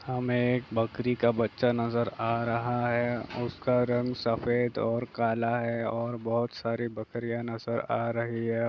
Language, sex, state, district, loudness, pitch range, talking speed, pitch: Hindi, male, Bihar, Jahanabad, -29 LUFS, 115-120 Hz, 160 wpm, 120 Hz